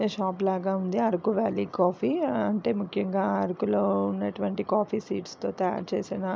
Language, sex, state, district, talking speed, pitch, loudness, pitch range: Telugu, female, Andhra Pradesh, Visakhapatnam, 150 wpm, 190 Hz, -28 LUFS, 180-210 Hz